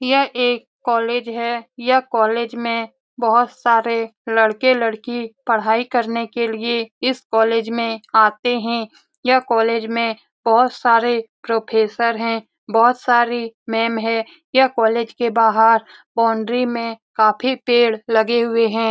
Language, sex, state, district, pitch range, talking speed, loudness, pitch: Hindi, female, Bihar, Lakhisarai, 225-240 Hz, 135 wpm, -18 LUFS, 230 Hz